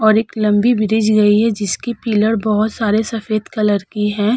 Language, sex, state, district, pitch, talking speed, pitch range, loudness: Hindi, female, Uttar Pradesh, Hamirpur, 215 Hz, 190 wpm, 210-225 Hz, -16 LUFS